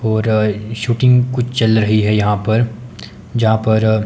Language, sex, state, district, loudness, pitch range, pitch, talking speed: Hindi, male, Himachal Pradesh, Shimla, -15 LUFS, 110-115 Hz, 110 Hz, 160 wpm